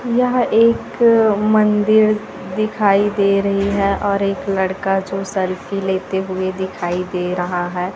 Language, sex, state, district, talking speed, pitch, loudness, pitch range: Hindi, female, Chhattisgarh, Raipur, 135 wpm, 195 Hz, -17 LUFS, 190-215 Hz